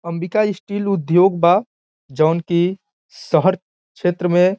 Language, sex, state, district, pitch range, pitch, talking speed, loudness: Bhojpuri, male, Bihar, Saran, 170-195 Hz, 180 Hz, 130 wpm, -18 LUFS